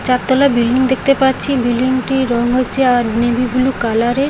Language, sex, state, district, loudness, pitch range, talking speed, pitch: Bengali, female, West Bengal, Paschim Medinipur, -14 LUFS, 240-265 Hz, 180 wpm, 255 Hz